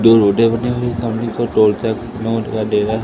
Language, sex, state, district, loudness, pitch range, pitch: Hindi, male, Madhya Pradesh, Katni, -16 LUFS, 110-115 Hz, 115 Hz